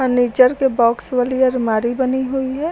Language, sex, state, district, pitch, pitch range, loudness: Hindi, female, Uttar Pradesh, Lucknow, 255 Hz, 245-265 Hz, -17 LUFS